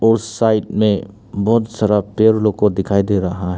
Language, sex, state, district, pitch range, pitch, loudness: Hindi, male, Arunachal Pradesh, Papum Pare, 100-110 Hz, 105 Hz, -16 LUFS